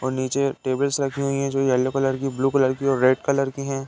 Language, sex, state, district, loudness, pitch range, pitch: Hindi, male, Uttar Pradesh, Varanasi, -22 LUFS, 130-140 Hz, 135 Hz